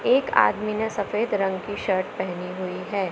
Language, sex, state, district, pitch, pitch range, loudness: Hindi, female, Madhya Pradesh, Katni, 200 Hz, 185-215 Hz, -25 LUFS